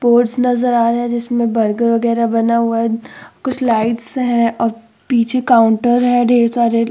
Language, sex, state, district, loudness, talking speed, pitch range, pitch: Hindi, female, Uttar Pradesh, Muzaffarnagar, -15 LUFS, 180 wpm, 230-245 Hz, 235 Hz